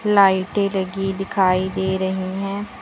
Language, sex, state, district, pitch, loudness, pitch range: Hindi, female, Uttar Pradesh, Lucknow, 195 Hz, -20 LUFS, 190-200 Hz